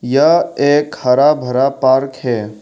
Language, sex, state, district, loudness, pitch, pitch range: Hindi, male, Arunachal Pradesh, Longding, -14 LUFS, 135 Hz, 125-145 Hz